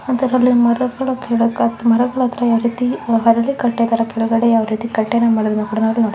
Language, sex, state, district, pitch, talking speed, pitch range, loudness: Kannada, female, Karnataka, Belgaum, 235 Hz, 145 wpm, 230-245 Hz, -16 LUFS